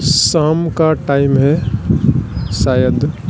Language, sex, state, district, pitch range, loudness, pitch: Hindi, male, Bihar, Katihar, 135-155 Hz, -14 LUFS, 145 Hz